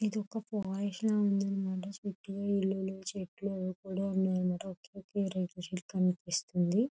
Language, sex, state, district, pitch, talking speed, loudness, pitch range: Telugu, female, Andhra Pradesh, Chittoor, 195 Hz, 105 wpm, -34 LUFS, 185-200 Hz